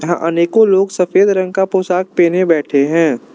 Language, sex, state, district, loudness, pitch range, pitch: Hindi, male, Arunachal Pradesh, Lower Dibang Valley, -13 LUFS, 165-190 Hz, 180 Hz